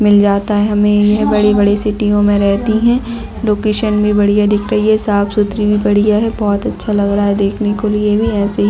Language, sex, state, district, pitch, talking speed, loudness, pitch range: Hindi, female, Chhattisgarh, Bilaspur, 210 Hz, 225 wpm, -13 LUFS, 205-215 Hz